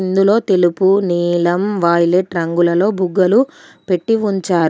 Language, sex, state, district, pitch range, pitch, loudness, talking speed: Telugu, female, Telangana, Komaram Bheem, 175-200 Hz, 185 Hz, -15 LUFS, 100 wpm